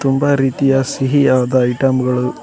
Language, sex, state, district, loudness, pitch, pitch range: Kannada, male, Karnataka, Koppal, -15 LUFS, 135 Hz, 125-135 Hz